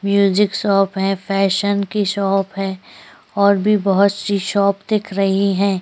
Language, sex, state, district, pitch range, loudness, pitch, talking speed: Hindi, female, Chhattisgarh, Korba, 195-200 Hz, -17 LUFS, 200 Hz, 155 wpm